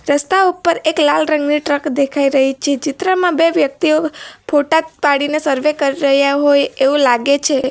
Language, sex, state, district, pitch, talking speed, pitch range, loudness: Gujarati, female, Gujarat, Valsad, 290 Hz, 170 wpm, 280-315 Hz, -14 LUFS